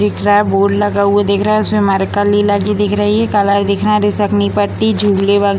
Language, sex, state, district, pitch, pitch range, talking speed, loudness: Hindi, female, Bihar, Gopalganj, 205 Hz, 200-205 Hz, 260 wpm, -13 LUFS